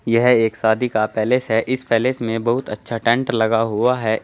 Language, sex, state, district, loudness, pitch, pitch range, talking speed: Hindi, male, Uttar Pradesh, Saharanpur, -18 LUFS, 115 Hz, 110-125 Hz, 210 wpm